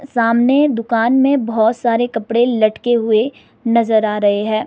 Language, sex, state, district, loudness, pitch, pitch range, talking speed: Hindi, female, Himachal Pradesh, Shimla, -15 LUFS, 230 Hz, 220-245 Hz, 155 wpm